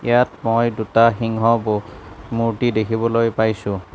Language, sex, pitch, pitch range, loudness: Assamese, male, 115 Hz, 110-115 Hz, -19 LUFS